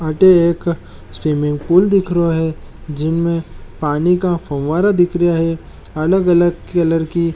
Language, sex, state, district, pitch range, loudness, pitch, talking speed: Marwari, male, Rajasthan, Nagaur, 155-175 Hz, -16 LUFS, 165 Hz, 145 wpm